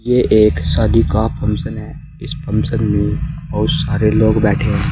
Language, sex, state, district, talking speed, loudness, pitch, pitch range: Hindi, male, Uttar Pradesh, Saharanpur, 160 wpm, -15 LUFS, 110 Hz, 105-125 Hz